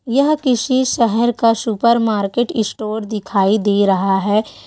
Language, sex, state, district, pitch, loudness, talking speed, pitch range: Hindi, female, Chhattisgarh, Korba, 225 Hz, -16 LUFS, 130 wpm, 205-240 Hz